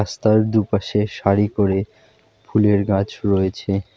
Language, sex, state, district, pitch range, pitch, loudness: Bengali, male, West Bengal, Alipurduar, 100-110 Hz, 105 Hz, -19 LUFS